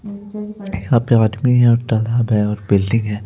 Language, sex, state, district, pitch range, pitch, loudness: Hindi, male, Madhya Pradesh, Bhopal, 110-140 Hz, 115 Hz, -16 LUFS